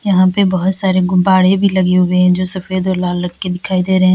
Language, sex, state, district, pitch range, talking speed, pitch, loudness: Hindi, female, Uttar Pradesh, Lalitpur, 180-190 Hz, 275 wpm, 185 Hz, -13 LUFS